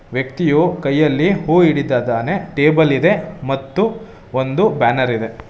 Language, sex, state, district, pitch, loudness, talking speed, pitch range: Kannada, male, Karnataka, Bangalore, 150 Hz, -16 LUFS, 110 wpm, 130-175 Hz